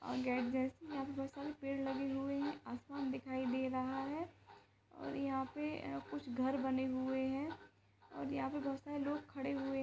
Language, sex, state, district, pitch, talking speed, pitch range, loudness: Hindi, female, Uttar Pradesh, Budaun, 270 Hz, 200 wpm, 260-280 Hz, -41 LUFS